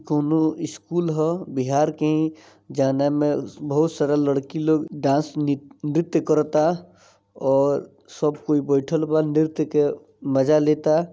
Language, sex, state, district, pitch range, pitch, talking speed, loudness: Bhojpuri, male, Bihar, East Champaran, 145-155 Hz, 150 Hz, 130 wpm, -22 LUFS